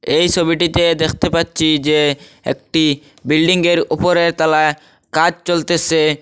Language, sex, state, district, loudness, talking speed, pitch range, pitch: Bengali, male, Assam, Hailakandi, -15 LUFS, 105 wpm, 155-170 Hz, 160 Hz